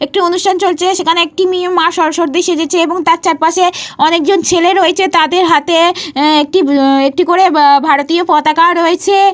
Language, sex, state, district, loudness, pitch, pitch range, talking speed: Bengali, female, Jharkhand, Jamtara, -10 LUFS, 340 Hz, 320-360 Hz, 160 wpm